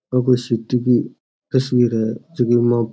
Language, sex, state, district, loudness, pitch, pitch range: Rajasthani, male, Rajasthan, Churu, -18 LUFS, 120 Hz, 115-125 Hz